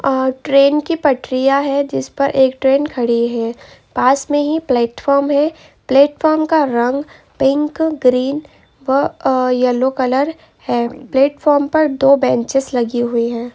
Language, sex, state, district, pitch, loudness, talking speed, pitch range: Hindi, female, Jharkhand, Jamtara, 270 Hz, -15 LUFS, 145 wpm, 255-290 Hz